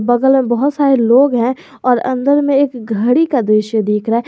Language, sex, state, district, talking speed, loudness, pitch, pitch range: Hindi, male, Jharkhand, Garhwa, 225 wpm, -14 LUFS, 255 Hz, 235-275 Hz